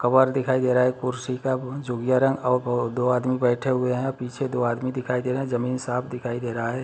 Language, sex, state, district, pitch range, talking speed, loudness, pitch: Hindi, male, Chhattisgarh, Bastar, 125-130 Hz, 245 wpm, -24 LUFS, 125 Hz